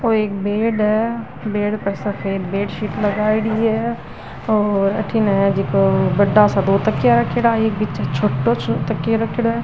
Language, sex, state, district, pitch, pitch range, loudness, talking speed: Marwari, female, Rajasthan, Nagaur, 210 Hz, 195-220 Hz, -18 LUFS, 170 wpm